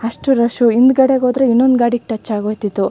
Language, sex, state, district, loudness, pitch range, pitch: Kannada, female, Karnataka, Chamarajanagar, -14 LUFS, 225-255 Hz, 240 Hz